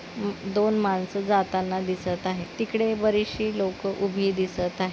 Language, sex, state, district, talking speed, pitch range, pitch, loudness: Marathi, female, Maharashtra, Nagpur, 145 wpm, 185-210 Hz, 195 Hz, -26 LUFS